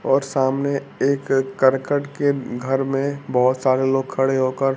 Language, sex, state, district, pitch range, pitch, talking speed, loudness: Hindi, male, Bihar, Kaimur, 130-140 Hz, 135 Hz, 150 wpm, -20 LUFS